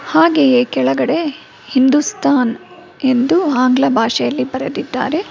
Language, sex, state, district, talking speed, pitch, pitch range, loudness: Kannada, female, Karnataka, Bangalore, 80 wpm, 265 Hz, 250-305 Hz, -15 LUFS